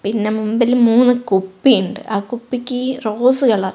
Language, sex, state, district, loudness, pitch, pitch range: Malayalam, female, Kerala, Kozhikode, -16 LUFS, 235 Hz, 210-250 Hz